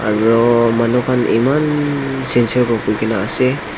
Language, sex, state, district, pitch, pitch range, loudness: Nagamese, male, Nagaland, Dimapur, 120 Hz, 115-130 Hz, -15 LUFS